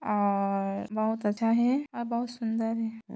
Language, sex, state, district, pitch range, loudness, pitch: Chhattisgarhi, female, Chhattisgarh, Sarguja, 210-235 Hz, -29 LUFS, 225 Hz